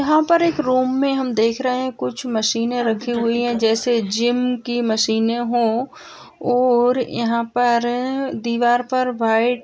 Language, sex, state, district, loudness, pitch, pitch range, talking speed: Hindi, female, Bihar, Purnia, -19 LUFS, 240 Hz, 230-255 Hz, 160 wpm